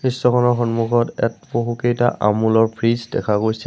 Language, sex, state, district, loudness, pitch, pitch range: Assamese, male, Assam, Sonitpur, -18 LUFS, 115 Hz, 110-120 Hz